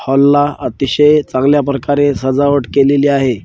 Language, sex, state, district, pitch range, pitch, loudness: Marathi, male, Maharashtra, Washim, 135-145 Hz, 140 Hz, -12 LUFS